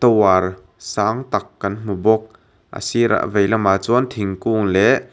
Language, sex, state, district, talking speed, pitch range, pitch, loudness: Mizo, male, Mizoram, Aizawl, 130 wpm, 100-110 Hz, 105 Hz, -18 LUFS